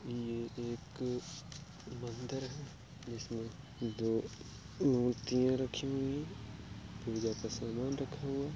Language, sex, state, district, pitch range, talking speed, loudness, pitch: Hindi, male, Uttar Pradesh, Jalaun, 115-135 Hz, 110 wpm, -38 LUFS, 125 Hz